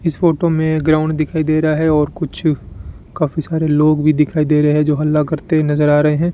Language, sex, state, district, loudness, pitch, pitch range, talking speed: Hindi, male, Rajasthan, Bikaner, -15 LUFS, 155 Hz, 150-155 Hz, 235 wpm